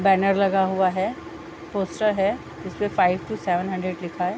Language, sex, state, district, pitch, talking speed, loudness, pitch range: Hindi, female, Bihar, Gopalganj, 190 Hz, 180 wpm, -23 LUFS, 180-200 Hz